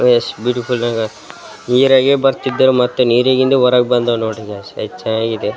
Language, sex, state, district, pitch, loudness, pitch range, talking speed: Kannada, male, Karnataka, Raichur, 125 Hz, -14 LUFS, 115-130 Hz, 120 wpm